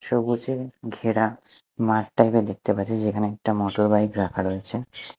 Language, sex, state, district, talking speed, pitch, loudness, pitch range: Bengali, male, Odisha, Nuapada, 140 wpm, 110 Hz, -24 LUFS, 105-115 Hz